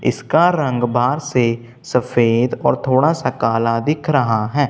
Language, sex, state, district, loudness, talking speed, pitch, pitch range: Hindi, male, Punjab, Kapurthala, -17 LUFS, 155 wpm, 125 Hz, 120-145 Hz